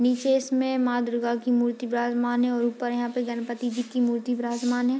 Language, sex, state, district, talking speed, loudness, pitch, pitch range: Hindi, female, Bihar, Madhepura, 215 wpm, -26 LUFS, 245 Hz, 240-245 Hz